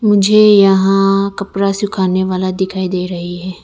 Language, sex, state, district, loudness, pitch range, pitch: Hindi, female, Arunachal Pradesh, Lower Dibang Valley, -13 LUFS, 185-200 Hz, 195 Hz